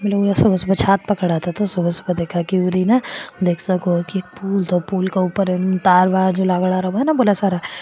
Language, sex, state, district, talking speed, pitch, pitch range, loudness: Marwari, female, Rajasthan, Churu, 155 wpm, 185 Hz, 180-195 Hz, -18 LUFS